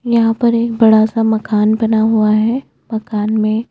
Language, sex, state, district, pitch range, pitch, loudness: Hindi, female, Chhattisgarh, Bastar, 215-230 Hz, 220 Hz, -14 LUFS